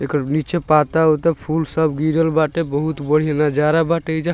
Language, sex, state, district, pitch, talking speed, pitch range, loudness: Bhojpuri, male, Bihar, Muzaffarpur, 155 Hz, 165 wpm, 150-160 Hz, -18 LUFS